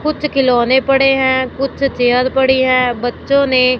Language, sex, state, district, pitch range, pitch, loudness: Hindi, female, Punjab, Fazilka, 255-270 Hz, 260 Hz, -13 LUFS